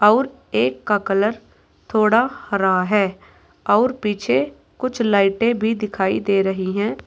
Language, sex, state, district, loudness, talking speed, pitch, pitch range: Hindi, female, Uttar Pradesh, Saharanpur, -19 LUFS, 135 wpm, 210 Hz, 195-230 Hz